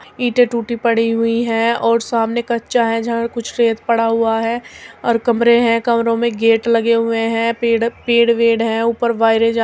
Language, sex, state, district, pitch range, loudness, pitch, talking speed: Hindi, female, Uttar Pradesh, Muzaffarnagar, 230-235 Hz, -16 LUFS, 230 Hz, 185 wpm